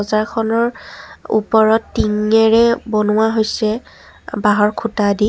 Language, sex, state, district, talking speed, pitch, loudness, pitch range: Assamese, female, Assam, Kamrup Metropolitan, 90 wpm, 220 Hz, -16 LUFS, 210-225 Hz